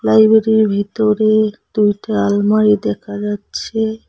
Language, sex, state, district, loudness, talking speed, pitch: Bengali, female, West Bengal, Cooch Behar, -15 LUFS, 90 wpm, 210 Hz